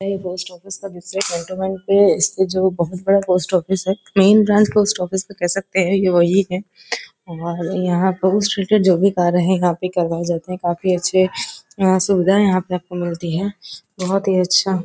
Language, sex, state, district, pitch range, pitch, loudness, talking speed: Hindi, female, Uttar Pradesh, Varanasi, 180-195 Hz, 185 Hz, -18 LUFS, 200 wpm